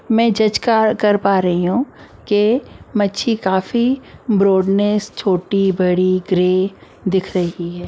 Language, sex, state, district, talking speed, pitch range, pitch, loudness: Hindi, female, Maharashtra, Mumbai Suburban, 120 wpm, 185-220 Hz, 195 Hz, -17 LUFS